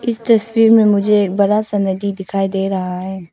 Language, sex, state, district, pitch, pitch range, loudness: Hindi, female, Arunachal Pradesh, Papum Pare, 200 Hz, 195-215 Hz, -15 LUFS